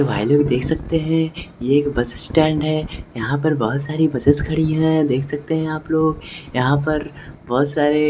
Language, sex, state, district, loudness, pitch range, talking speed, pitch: Hindi, male, Bihar, West Champaran, -19 LUFS, 140-155 Hz, 200 wpm, 150 Hz